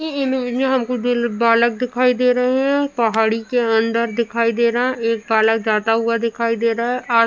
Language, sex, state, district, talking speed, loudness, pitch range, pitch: Hindi, female, Uttar Pradesh, Jalaun, 225 wpm, -18 LUFS, 230-250 Hz, 235 Hz